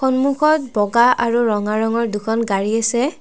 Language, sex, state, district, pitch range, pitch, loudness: Assamese, female, Assam, Kamrup Metropolitan, 215-260 Hz, 235 Hz, -17 LUFS